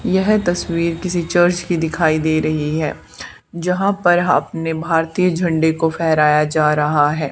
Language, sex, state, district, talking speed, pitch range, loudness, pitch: Hindi, female, Haryana, Charkhi Dadri, 155 wpm, 155-175 Hz, -17 LUFS, 165 Hz